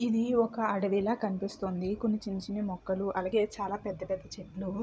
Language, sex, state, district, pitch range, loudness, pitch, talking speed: Telugu, female, Andhra Pradesh, Chittoor, 190-215 Hz, -32 LUFS, 200 Hz, 185 wpm